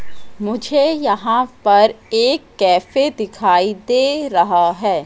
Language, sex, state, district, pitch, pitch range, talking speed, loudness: Hindi, female, Madhya Pradesh, Katni, 215 Hz, 195-270 Hz, 105 wpm, -16 LUFS